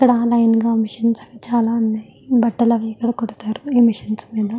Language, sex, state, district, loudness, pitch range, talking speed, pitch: Telugu, female, Andhra Pradesh, Guntur, -18 LUFS, 220-235 Hz, 155 wpm, 230 Hz